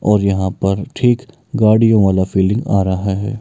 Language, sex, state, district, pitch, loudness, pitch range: Maithili, male, Bihar, Bhagalpur, 100 Hz, -15 LUFS, 95-115 Hz